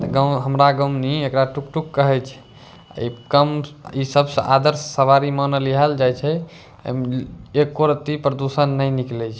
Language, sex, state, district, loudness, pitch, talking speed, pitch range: Angika, male, Bihar, Bhagalpur, -19 LUFS, 140 Hz, 160 wpm, 135-145 Hz